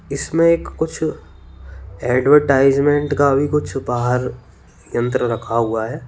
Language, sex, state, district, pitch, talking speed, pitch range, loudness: Hindi, male, Uttar Pradesh, Lalitpur, 125 Hz, 110 wpm, 110-145 Hz, -18 LUFS